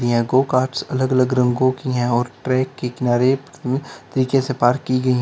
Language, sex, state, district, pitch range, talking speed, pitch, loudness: Hindi, male, Uttar Pradesh, Lalitpur, 125-130 Hz, 195 wpm, 130 Hz, -19 LUFS